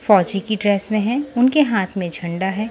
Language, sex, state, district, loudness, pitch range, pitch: Hindi, female, Haryana, Jhajjar, -18 LUFS, 195-230 Hz, 210 Hz